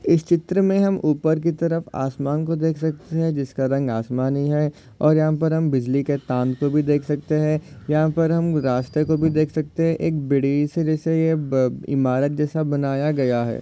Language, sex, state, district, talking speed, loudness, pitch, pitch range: Hindi, male, Maharashtra, Solapur, 210 wpm, -21 LUFS, 150 Hz, 140-160 Hz